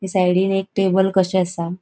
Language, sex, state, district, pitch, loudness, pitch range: Konkani, female, Goa, North and South Goa, 190 Hz, -18 LUFS, 180-195 Hz